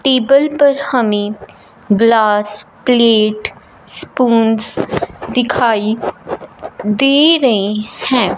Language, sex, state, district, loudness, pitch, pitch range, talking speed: Hindi, female, Punjab, Fazilka, -13 LUFS, 230 Hz, 215-260 Hz, 70 wpm